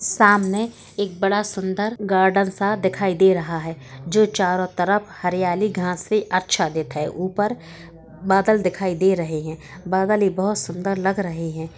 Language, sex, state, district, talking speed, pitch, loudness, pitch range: Hindi, female, Bihar, Gaya, 155 wpm, 190 Hz, -21 LUFS, 175-205 Hz